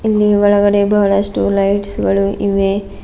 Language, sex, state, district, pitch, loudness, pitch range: Kannada, female, Karnataka, Bidar, 200 Hz, -14 LUFS, 200-205 Hz